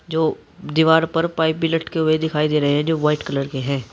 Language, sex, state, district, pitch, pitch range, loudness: Hindi, male, Uttar Pradesh, Saharanpur, 155 Hz, 150-160 Hz, -19 LUFS